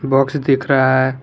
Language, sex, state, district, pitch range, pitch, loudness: Hindi, male, Jharkhand, Garhwa, 130-135 Hz, 135 Hz, -15 LUFS